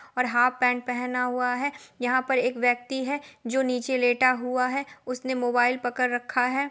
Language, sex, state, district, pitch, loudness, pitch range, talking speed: Hindi, female, Bihar, Gopalganj, 250 Hz, -25 LUFS, 245-260 Hz, 190 wpm